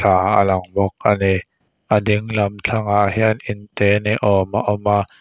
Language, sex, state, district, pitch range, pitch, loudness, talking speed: Mizo, male, Mizoram, Aizawl, 100-105 Hz, 105 Hz, -18 LUFS, 185 wpm